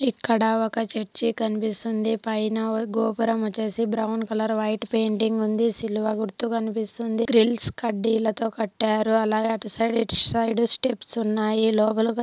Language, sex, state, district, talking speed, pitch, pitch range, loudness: Telugu, female, Andhra Pradesh, Anantapur, 125 wpm, 225 Hz, 220-230 Hz, -23 LUFS